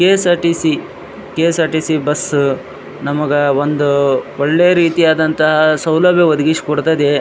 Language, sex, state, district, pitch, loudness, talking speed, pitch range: Kannada, male, Karnataka, Dharwad, 155 Hz, -14 LUFS, 100 wpm, 145-165 Hz